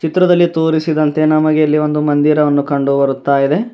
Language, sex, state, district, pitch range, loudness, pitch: Kannada, male, Karnataka, Bidar, 145-160 Hz, -13 LUFS, 150 Hz